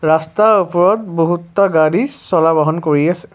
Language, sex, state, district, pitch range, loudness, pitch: Assamese, male, Assam, Kamrup Metropolitan, 160-200 Hz, -14 LUFS, 170 Hz